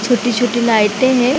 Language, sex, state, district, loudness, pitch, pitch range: Hindi, female, Chhattisgarh, Bilaspur, -14 LUFS, 240 Hz, 230-250 Hz